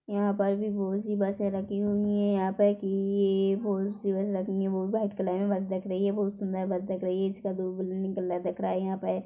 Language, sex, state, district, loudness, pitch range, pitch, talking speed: Hindi, female, Chhattisgarh, Korba, -29 LUFS, 190-200 Hz, 195 Hz, 285 wpm